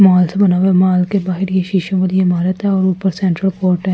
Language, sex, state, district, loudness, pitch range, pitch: Hindi, female, Delhi, New Delhi, -15 LUFS, 180-190 Hz, 185 Hz